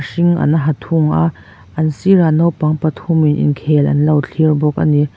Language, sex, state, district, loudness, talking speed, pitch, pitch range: Mizo, female, Mizoram, Aizawl, -14 LUFS, 210 wpm, 155 Hz, 145-160 Hz